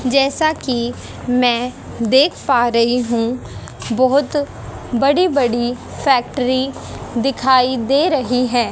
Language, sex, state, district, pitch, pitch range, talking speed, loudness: Hindi, female, Haryana, Jhajjar, 255 Hz, 240-275 Hz, 105 wpm, -17 LUFS